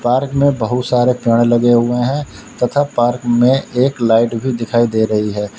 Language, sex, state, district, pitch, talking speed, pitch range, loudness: Hindi, male, Uttar Pradesh, Lalitpur, 120 Hz, 195 wpm, 115-125 Hz, -15 LUFS